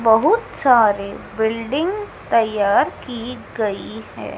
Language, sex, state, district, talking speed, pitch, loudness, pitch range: Hindi, female, Madhya Pradesh, Dhar, 95 wpm, 230 Hz, -19 LUFS, 220-270 Hz